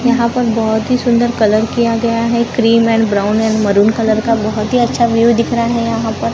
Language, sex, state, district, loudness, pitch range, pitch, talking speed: Hindi, female, Maharashtra, Gondia, -13 LUFS, 220-235 Hz, 230 Hz, 235 wpm